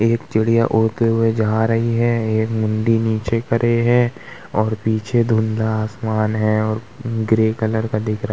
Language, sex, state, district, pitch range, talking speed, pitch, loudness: Hindi, male, Uttar Pradesh, Hamirpur, 110-115 Hz, 175 wpm, 110 Hz, -18 LUFS